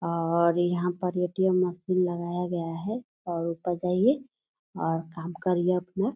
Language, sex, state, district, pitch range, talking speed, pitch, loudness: Hindi, female, Bihar, Purnia, 170-185 Hz, 145 wpm, 180 Hz, -28 LUFS